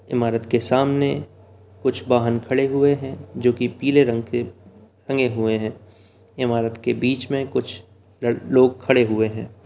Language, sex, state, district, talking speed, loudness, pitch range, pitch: Hindi, male, Bihar, Begusarai, 170 wpm, -21 LUFS, 110-130 Hz, 120 Hz